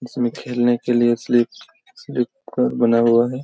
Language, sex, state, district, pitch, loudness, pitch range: Hindi, male, Jharkhand, Jamtara, 120 Hz, -19 LUFS, 120-125 Hz